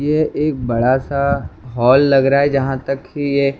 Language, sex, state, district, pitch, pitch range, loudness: Hindi, male, Maharashtra, Mumbai Suburban, 140 Hz, 130-140 Hz, -16 LUFS